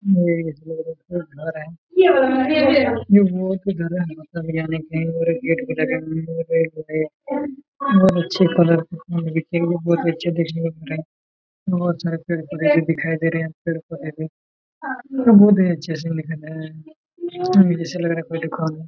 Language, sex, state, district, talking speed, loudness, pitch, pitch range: Hindi, male, Jharkhand, Jamtara, 30 wpm, -20 LUFS, 165 Hz, 160-185 Hz